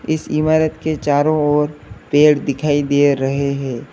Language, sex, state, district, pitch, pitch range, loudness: Hindi, male, Uttar Pradesh, Lalitpur, 145 Hz, 140-155 Hz, -16 LUFS